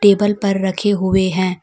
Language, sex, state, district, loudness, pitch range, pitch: Hindi, female, Jharkhand, Deoghar, -16 LUFS, 185-205 Hz, 195 Hz